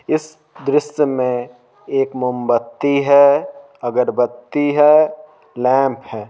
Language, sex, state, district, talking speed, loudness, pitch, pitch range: Hindi, male, Bihar, Patna, 95 wpm, -16 LUFS, 135 Hz, 125-150 Hz